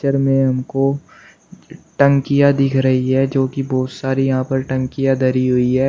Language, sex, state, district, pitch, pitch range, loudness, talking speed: Hindi, male, Uttar Pradesh, Shamli, 135 Hz, 130-135 Hz, -17 LUFS, 185 wpm